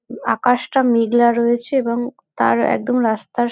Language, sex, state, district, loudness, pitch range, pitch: Bengali, female, West Bengal, North 24 Parganas, -17 LUFS, 230-250 Hz, 240 Hz